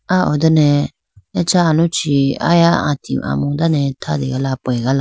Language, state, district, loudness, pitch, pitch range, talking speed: Idu Mishmi, Arunachal Pradesh, Lower Dibang Valley, -16 LUFS, 145 Hz, 135-165 Hz, 130 wpm